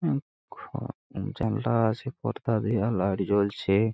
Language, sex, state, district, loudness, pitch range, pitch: Bengali, male, West Bengal, Purulia, -28 LUFS, 100-115 Hz, 110 Hz